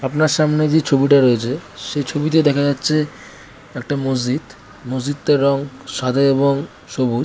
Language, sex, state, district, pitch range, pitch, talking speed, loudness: Bengali, female, West Bengal, North 24 Parganas, 130-145 Hz, 140 Hz, 130 wpm, -18 LUFS